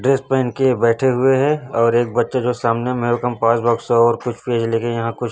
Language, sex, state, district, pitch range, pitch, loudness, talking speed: Hindi, male, Chhattisgarh, Raipur, 115-130 Hz, 120 Hz, -17 LUFS, 235 wpm